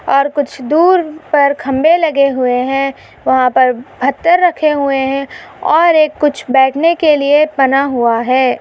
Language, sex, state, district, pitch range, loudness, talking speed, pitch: Hindi, female, Maharashtra, Pune, 265-310 Hz, -12 LUFS, 155 wpm, 280 Hz